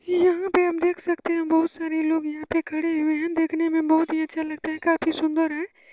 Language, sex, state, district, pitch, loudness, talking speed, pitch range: Hindi, female, Bihar, Supaul, 325 Hz, -24 LUFS, 240 wpm, 315-340 Hz